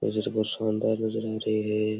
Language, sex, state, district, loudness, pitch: Rajasthani, male, Rajasthan, Churu, -28 LUFS, 110 Hz